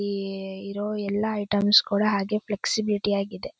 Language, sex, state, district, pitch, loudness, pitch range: Kannada, female, Karnataka, Shimoga, 205 Hz, -25 LUFS, 200-210 Hz